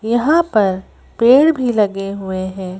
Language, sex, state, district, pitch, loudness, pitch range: Hindi, female, Madhya Pradesh, Bhopal, 210 Hz, -15 LUFS, 190-245 Hz